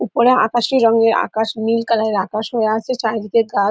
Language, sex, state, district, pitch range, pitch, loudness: Bengali, female, West Bengal, Dakshin Dinajpur, 220-235 Hz, 225 Hz, -17 LUFS